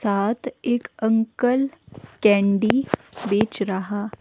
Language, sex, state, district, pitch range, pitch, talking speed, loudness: Hindi, female, Himachal Pradesh, Shimla, 205-245 Hz, 220 Hz, 85 wpm, -22 LUFS